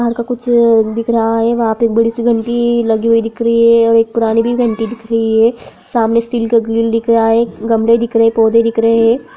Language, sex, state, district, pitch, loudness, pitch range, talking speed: Hindi, female, Bihar, Gaya, 230 Hz, -13 LUFS, 225-235 Hz, 235 wpm